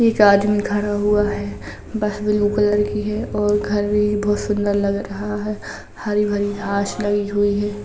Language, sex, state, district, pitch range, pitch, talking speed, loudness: Hindi, female, Uttar Pradesh, Jalaun, 205-210 Hz, 205 Hz, 185 wpm, -20 LUFS